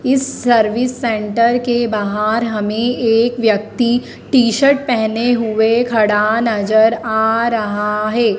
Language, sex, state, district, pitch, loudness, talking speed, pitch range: Hindi, female, Madhya Pradesh, Dhar, 225 Hz, -15 LUFS, 115 wpm, 215-240 Hz